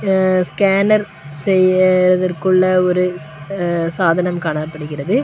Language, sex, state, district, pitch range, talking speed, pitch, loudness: Tamil, female, Tamil Nadu, Kanyakumari, 165-185 Hz, 70 wpm, 180 Hz, -16 LUFS